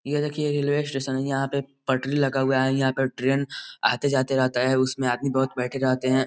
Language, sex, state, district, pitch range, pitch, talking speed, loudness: Hindi, male, Bihar, East Champaran, 130-140 Hz, 135 Hz, 240 wpm, -24 LUFS